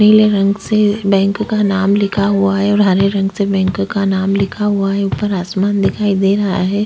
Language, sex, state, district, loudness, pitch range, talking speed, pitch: Hindi, female, Chhattisgarh, Korba, -14 LUFS, 195-205 Hz, 220 wpm, 200 Hz